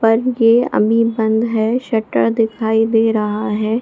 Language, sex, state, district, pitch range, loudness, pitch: Hindi, female, Bihar, Supaul, 220-230 Hz, -16 LUFS, 225 Hz